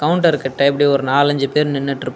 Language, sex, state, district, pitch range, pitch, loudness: Tamil, male, Tamil Nadu, Nilgiris, 140-145 Hz, 140 Hz, -16 LUFS